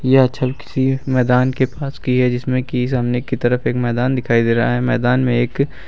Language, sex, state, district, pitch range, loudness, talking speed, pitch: Hindi, male, Uttar Pradesh, Lucknow, 120-130 Hz, -17 LUFS, 225 wpm, 125 Hz